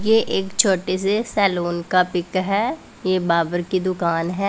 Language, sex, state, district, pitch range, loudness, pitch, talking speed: Hindi, female, Punjab, Pathankot, 175-200 Hz, -20 LUFS, 185 Hz, 175 wpm